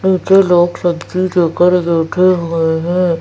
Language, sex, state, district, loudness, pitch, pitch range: Hindi, female, Madhya Pradesh, Bhopal, -13 LUFS, 175 Hz, 170-185 Hz